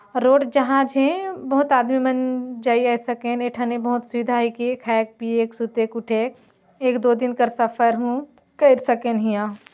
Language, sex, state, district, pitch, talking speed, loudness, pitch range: Chhattisgarhi, female, Chhattisgarh, Jashpur, 245 Hz, 165 wpm, -21 LUFS, 235-260 Hz